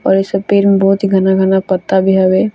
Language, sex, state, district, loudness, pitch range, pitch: Bhojpuri, female, Bihar, Gopalganj, -12 LUFS, 190-195 Hz, 190 Hz